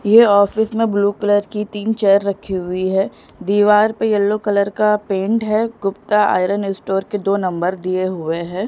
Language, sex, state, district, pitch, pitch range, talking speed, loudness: Hindi, female, Punjab, Pathankot, 200 Hz, 195-210 Hz, 185 wpm, -17 LUFS